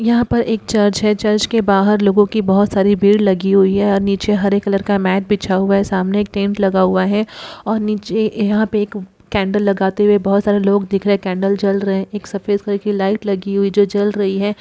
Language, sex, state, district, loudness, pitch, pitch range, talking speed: Hindi, female, Uttar Pradesh, Gorakhpur, -16 LUFS, 205 Hz, 195-210 Hz, 240 wpm